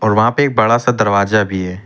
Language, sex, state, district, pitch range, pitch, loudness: Hindi, male, Uttar Pradesh, Lucknow, 100-115 Hz, 110 Hz, -14 LUFS